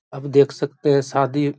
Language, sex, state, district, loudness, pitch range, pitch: Hindi, male, Bihar, Vaishali, -19 LUFS, 140-145 Hz, 145 Hz